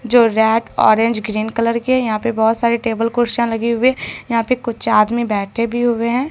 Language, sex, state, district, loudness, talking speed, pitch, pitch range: Hindi, female, Bihar, Katihar, -16 LUFS, 210 wpm, 230 Hz, 225-235 Hz